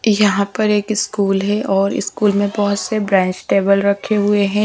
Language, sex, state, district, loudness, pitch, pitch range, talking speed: Hindi, female, Bihar, Patna, -16 LUFS, 205 Hz, 200-210 Hz, 195 wpm